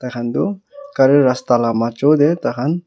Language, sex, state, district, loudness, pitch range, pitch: Nagamese, male, Nagaland, Kohima, -16 LUFS, 120-170 Hz, 140 Hz